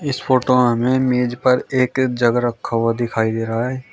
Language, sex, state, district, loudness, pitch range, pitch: Hindi, male, Uttar Pradesh, Shamli, -18 LUFS, 120-130 Hz, 125 Hz